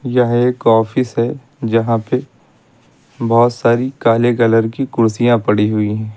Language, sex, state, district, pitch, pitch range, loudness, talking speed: Hindi, male, Uttar Pradesh, Lucknow, 115 Hz, 115-125 Hz, -15 LUFS, 145 wpm